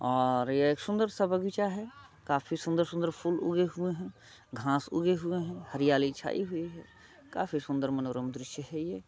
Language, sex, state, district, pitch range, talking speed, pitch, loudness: Hindi, male, Bihar, Muzaffarpur, 135-175 Hz, 180 wpm, 155 Hz, -31 LUFS